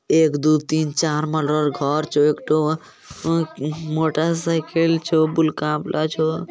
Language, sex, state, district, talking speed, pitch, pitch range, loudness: Maithili, male, Bihar, Bhagalpur, 145 wpm, 155 Hz, 150-160 Hz, -20 LUFS